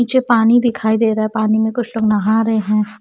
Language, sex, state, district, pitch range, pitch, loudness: Hindi, female, Haryana, Charkhi Dadri, 215-235 Hz, 220 Hz, -15 LUFS